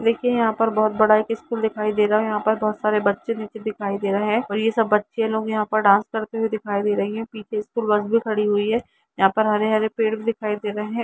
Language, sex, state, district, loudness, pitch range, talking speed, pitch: Hindi, female, Jharkhand, Jamtara, -21 LUFS, 210-225 Hz, 270 wpm, 215 Hz